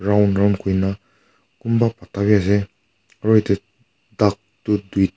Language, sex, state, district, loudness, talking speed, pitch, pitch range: Nagamese, male, Nagaland, Kohima, -19 LUFS, 125 wpm, 100 Hz, 100-105 Hz